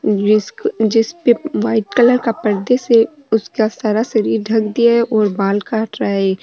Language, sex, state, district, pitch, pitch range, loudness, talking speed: Rajasthani, female, Rajasthan, Nagaur, 220 Hz, 210-235 Hz, -16 LUFS, 185 wpm